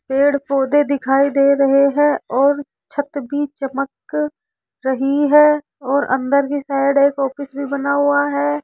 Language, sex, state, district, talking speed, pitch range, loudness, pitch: Hindi, male, Rajasthan, Jaipur, 155 wpm, 275-290 Hz, -17 LUFS, 280 Hz